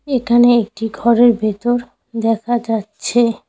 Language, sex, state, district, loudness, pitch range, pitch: Bengali, female, West Bengal, Cooch Behar, -16 LUFS, 225-240 Hz, 235 Hz